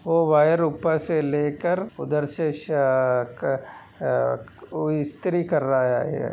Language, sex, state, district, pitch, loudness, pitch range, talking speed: Hindi, male, Maharashtra, Aurangabad, 150 Hz, -23 LUFS, 135-160 Hz, 135 wpm